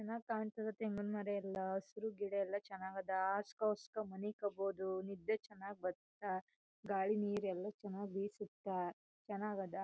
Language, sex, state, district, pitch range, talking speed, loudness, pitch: Kannada, female, Karnataka, Chamarajanagar, 195-210 Hz, 120 wpm, -43 LUFS, 200 Hz